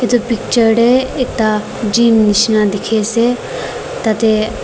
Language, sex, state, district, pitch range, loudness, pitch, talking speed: Nagamese, female, Nagaland, Dimapur, 215-245 Hz, -14 LUFS, 230 Hz, 115 wpm